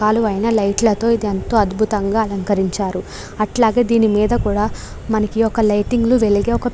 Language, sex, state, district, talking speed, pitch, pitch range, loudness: Telugu, female, Andhra Pradesh, Krishna, 150 wpm, 215 Hz, 205-230 Hz, -17 LUFS